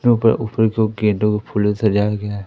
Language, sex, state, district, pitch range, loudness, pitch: Hindi, male, Madhya Pradesh, Umaria, 105-110 Hz, -18 LUFS, 105 Hz